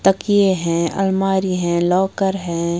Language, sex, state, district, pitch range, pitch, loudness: Hindi, female, Bihar, West Champaran, 170-195 Hz, 190 Hz, -18 LUFS